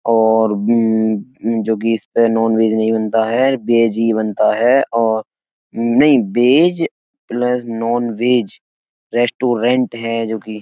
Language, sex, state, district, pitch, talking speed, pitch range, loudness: Hindi, male, Uttar Pradesh, Etah, 115 Hz, 145 wpm, 110-120 Hz, -16 LUFS